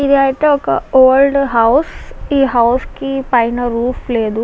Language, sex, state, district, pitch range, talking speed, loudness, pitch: Telugu, female, Andhra Pradesh, Visakhapatnam, 235-275 Hz, 150 wpm, -13 LUFS, 260 Hz